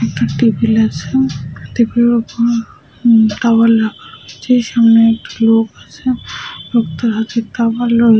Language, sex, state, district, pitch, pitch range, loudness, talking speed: Bengali, female, West Bengal, Purulia, 225 Hz, 220-235 Hz, -14 LUFS, 155 wpm